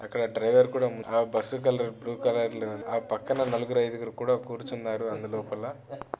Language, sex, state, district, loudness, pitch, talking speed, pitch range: Telugu, male, Andhra Pradesh, Chittoor, -29 LUFS, 115 Hz, 145 wpm, 115-125 Hz